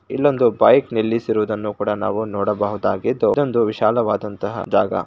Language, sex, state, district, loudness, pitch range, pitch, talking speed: Kannada, male, Karnataka, Shimoga, -19 LUFS, 105-110 Hz, 105 Hz, 105 wpm